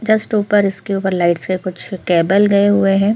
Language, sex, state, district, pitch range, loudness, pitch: Hindi, female, Chhattisgarh, Korba, 185-205 Hz, -15 LUFS, 195 Hz